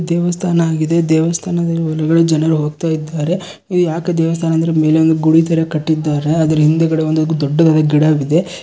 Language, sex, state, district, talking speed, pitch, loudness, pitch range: Kannada, male, Karnataka, Bellary, 140 wpm, 160 Hz, -14 LUFS, 155-165 Hz